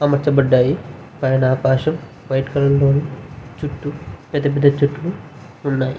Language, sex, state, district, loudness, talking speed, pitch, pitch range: Telugu, male, Andhra Pradesh, Visakhapatnam, -18 LUFS, 110 wpm, 140 Hz, 135-145 Hz